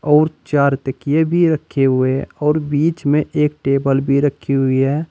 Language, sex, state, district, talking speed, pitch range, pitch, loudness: Hindi, male, Uttar Pradesh, Saharanpur, 175 wpm, 135-150 Hz, 145 Hz, -17 LUFS